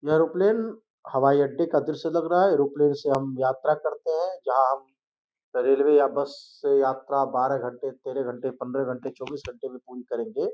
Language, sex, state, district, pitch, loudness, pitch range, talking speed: Hindi, male, Uttar Pradesh, Gorakhpur, 140 Hz, -25 LUFS, 135-165 Hz, 190 wpm